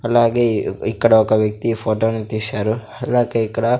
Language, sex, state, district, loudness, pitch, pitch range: Telugu, male, Andhra Pradesh, Sri Satya Sai, -18 LUFS, 115 Hz, 110-120 Hz